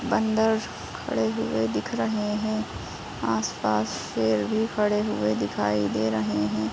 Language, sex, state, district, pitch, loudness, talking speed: Hindi, female, Uttar Pradesh, Jalaun, 110 Hz, -26 LUFS, 135 wpm